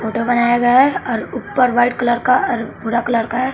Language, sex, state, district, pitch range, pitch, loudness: Hindi, male, Bihar, West Champaran, 235-255 Hz, 240 Hz, -16 LUFS